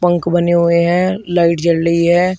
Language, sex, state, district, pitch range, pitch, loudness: Hindi, male, Uttar Pradesh, Shamli, 170-175 Hz, 175 Hz, -14 LUFS